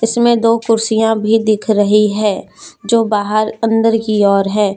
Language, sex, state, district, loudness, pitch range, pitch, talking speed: Hindi, female, Jharkhand, Deoghar, -13 LUFS, 210-225 Hz, 220 Hz, 165 wpm